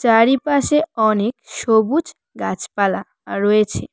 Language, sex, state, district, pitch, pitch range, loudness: Bengali, female, West Bengal, Cooch Behar, 225 Hz, 215-280 Hz, -18 LUFS